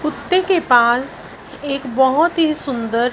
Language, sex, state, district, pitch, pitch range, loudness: Hindi, female, Punjab, Fazilka, 275 Hz, 245-320 Hz, -16 LUFS